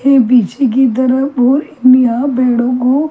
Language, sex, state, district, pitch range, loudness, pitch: Hindi, female, Delhi, New Delhi, 245-270 Hz, -11 LUFS, 255 Hz